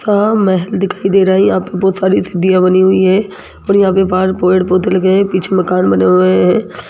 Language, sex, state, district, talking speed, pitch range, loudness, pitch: Hindi, female, Rajasthan, Jaipur, 235 wpm, 185-195 Hz, -12 LUFS, 190 Hz